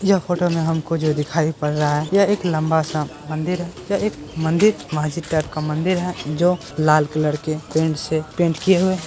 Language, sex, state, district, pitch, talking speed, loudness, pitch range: Hindi, female, Bihar, Purnia, 160 Hz, 220 wpm, -20 LUFS, 155-175 Hz